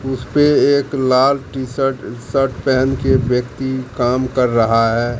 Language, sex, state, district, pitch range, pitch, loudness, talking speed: Hindi, male, Bihar, Katihar, 125-135 Hz, 130 Hz, -16 LUFS, 150 wpm